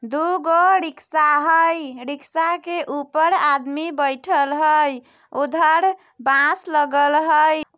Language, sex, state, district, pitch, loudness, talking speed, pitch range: Bajjika, female, Bihar, Vaishali, 310 Hz, -18 LUFS, 100 wpm, 285-330 Hz